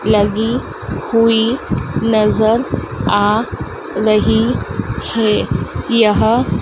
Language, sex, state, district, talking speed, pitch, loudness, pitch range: Hindi, female, Madhya Pradesh, Dhar, 65 wpm, 220 Hz, -15 LUFS, 215-230 Hz